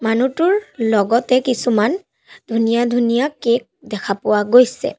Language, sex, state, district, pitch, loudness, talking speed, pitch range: Assamese, female, Assam, Sonitpur, 235 Hz, -17 LUFS, 110 wpm, 225-255 Hz